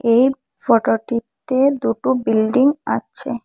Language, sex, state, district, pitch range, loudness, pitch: Bengali, female, Assam, Hailakandi, 230-265 Hz, -18 LUFS, 250 Hz